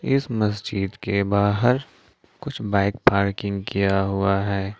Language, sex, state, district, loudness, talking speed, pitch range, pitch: Hindi, male, Jharkhand, Ranchi, -22 LUFS, 125 wpm, 100-110 Hz, 100 Hz